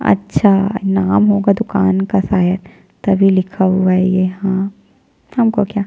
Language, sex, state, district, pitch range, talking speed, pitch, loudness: Hindi, female, Chhattisgarh, Jashpur, 185-200 Hz, 135 wpm, 195 Hz, -15 LUFS